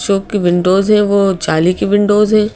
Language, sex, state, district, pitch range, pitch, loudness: Hindi, female, Madhya Pradesh, Bhopal, 185-210 Hz, 200 Hz, -12 LUFS